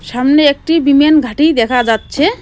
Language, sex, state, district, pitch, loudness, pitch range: Bengali, female, West Bengal, Cooch Behar, 285 Hz, -11 LUFS, 250-310 Hz